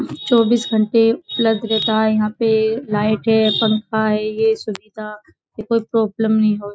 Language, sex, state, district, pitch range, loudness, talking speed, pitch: Hindi, female, Uttar Pradesh, Budaun, 215-225 Hz, -17 LUFS, 170 wpm, 220 Hz